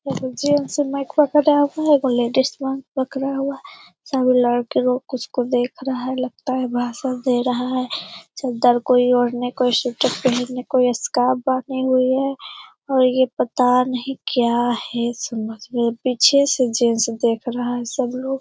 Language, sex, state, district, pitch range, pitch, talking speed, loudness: Hindi, female, Bihar, Lakhisarai, 245-270 Hz, 255 Hz, 190 wpm, -20 LUFS